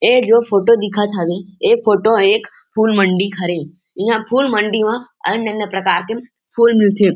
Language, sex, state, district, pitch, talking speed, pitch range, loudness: Chhattisgarhi, male, Chhattisgarh, Rajnandgaon, 215 Hz, 185 wpm, 195-230 Hz, -15 LUFS